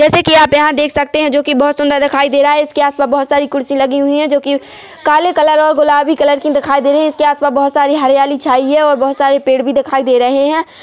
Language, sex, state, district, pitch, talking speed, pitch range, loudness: Hindi, female, Chhattisgarh, Korba, 285 Hz, 280 wpm, 280-300 Hz, -11 LUFS